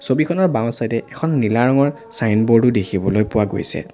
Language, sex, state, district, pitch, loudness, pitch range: Assamese, male, Assam, Sonitpur, 115 Hz, -17 LUFS, 110-140 Hz